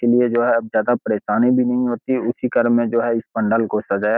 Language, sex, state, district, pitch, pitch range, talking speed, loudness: Hindi, male, Bihar, Begusarai, 120 Hz, 110-120 Hz, 275 wpm, -19 LUFS